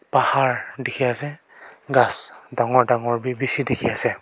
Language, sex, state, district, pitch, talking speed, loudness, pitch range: Nagamese, male, Nagaland, Kohima, 125 Hz, 140 wpm, -21 LUFS, 120-135 Hz